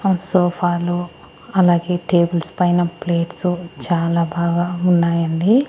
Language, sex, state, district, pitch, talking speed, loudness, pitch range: Telugu, female, Andhra Pradesh, Annamaya, 175 Hz, 95 wpm, -18 LUFS, 170-180 Hz